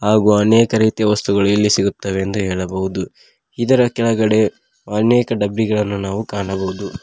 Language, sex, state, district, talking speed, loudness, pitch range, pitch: Kannada, male, Karnataka, Koppal, 120 wpm, -17 LUFS, 100-110 Hz, 105 Hz